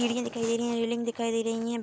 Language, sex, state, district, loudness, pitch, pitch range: Hindi, female, Bihar, Darbhanga, -29 LUFS, 235 Hz, 230-235 Hz